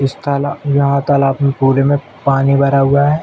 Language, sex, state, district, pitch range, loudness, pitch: Hindi, male, Uttar Pradesh, Ghazipur, 135-140 Hz, -14 LUFS, 140 Hz